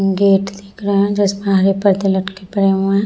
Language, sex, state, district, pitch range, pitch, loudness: Hindi, female, Bihar, Vaishali, 195-200 Hz, 195 Hz, -16 LUFS